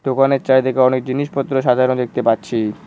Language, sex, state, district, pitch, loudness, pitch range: Bengali, male, West Bengal, Cooch Behar, 130 Hz, -17 LUFS, 125-135 Hz